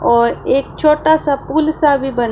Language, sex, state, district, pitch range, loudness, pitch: Hindi, female, Punjab, Pathankot, 265-310 Hz, -14 LUFS, 285 Hz